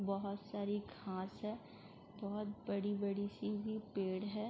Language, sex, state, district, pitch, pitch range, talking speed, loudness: Hindi, female, Uttar Pradesh, Jalaun, 205 Hz, 200-210 Hz, 120 wpm, -42 LUFS